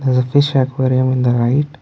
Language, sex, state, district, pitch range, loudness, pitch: English, male, Karnataka, Bangalore, 130-140 Hz, -15 LUFS, 130 Hz